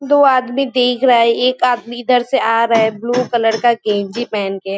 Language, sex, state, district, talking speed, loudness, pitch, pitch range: Hindi, female, West Bengal, Kolkata, 225 wpm, -15 LUFS, 240 Hz, 225-250 Hz